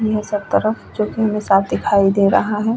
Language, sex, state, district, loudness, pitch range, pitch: Hindi, female, Chhattisgarh, Bastar, -17 LUFS, 200-215 Hz, 210 Hz